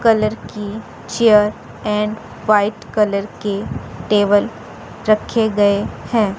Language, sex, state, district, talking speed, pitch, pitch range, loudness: Hindi, female, Chandigarh, Chandigarh, 105 wpm, 210 Hz, 205-220 Hz, -18 LUFS